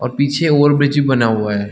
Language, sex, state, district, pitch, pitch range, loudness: Hindi, male, Chhattisgarh, Balrampur, 140 Hz, 115-145 Hz, -14 LUFS